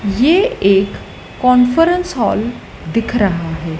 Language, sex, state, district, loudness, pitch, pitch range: Hindi, female, Madhya Pradesh, Dhar, -15 LUFS, 225 Hz, 195-285 Hz